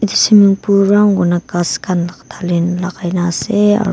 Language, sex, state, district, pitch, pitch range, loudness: Nagamese, female, Nagaland, Kohima, 185 Hz, 175-205 Hz, -13 LUFS